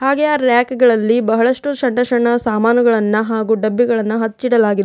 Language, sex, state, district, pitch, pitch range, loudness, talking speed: Kannada, female, Karnataka, Bidar, 235 Hz, 220-250 Hz, -15 LUFS, 135 wpm